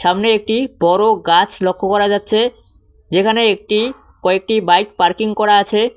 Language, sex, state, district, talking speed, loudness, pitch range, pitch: Bengali, male, West Bengal, Cooch Behar, 140 wpm, -15 LUFS, 190-220 Hz, 210 Hz